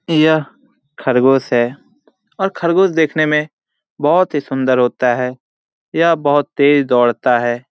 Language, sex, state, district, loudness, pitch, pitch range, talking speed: Hindi, male, Bihar, Jamui, -15 LUFS, 145 Hz, 125-160 Hz, 140 wpm